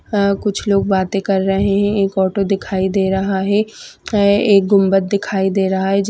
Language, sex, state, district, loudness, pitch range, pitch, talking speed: Hindi, female, Bihar, Madhepura, -16 LUFS, 195-200 Hz, 195 Hz, 215 wpm